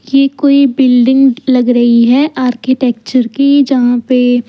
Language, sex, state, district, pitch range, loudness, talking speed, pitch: Hindi, female, Chandigarh, Chandigarh, 245-270 Hz, -10 LUFS, 145 wpm, 255 Hz